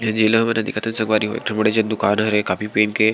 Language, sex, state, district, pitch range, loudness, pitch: Chhattisgarhi, male, Chhattisgarh, Sarguja, 105-110 Hz, -19 LUFS, 110 Hz